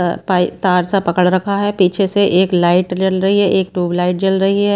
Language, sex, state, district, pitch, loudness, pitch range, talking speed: Hindi, female, Himachal Pradesh, Shimla, 185 Hz, -15 LUFS, 180-195 Hz, 225 wpm